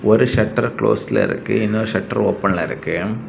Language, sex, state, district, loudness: Tamil, male, Tamil Nadu, Kanyakumari, -19 LUFS